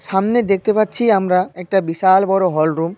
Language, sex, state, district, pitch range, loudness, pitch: Bengali, male, West Bengal, Malda, 180-205 Hz, -16 LUFS, 190 Hz